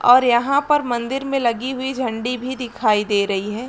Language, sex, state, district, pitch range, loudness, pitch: Hindi, female, Chhattisgarh, Raigarh, 230-260 Hz, -19 LUFS, 245 Hz